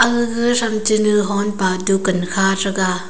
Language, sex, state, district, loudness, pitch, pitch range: Wancho, female, Arunachal Pradesh, Longding, -17 LUFS, 200 Hz, 190-215 Hz